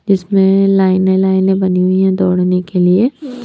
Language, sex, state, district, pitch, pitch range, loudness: Hindi, female, Punjab, Pathankot, 190 Hz, 185-195 Hz, -12 LUFS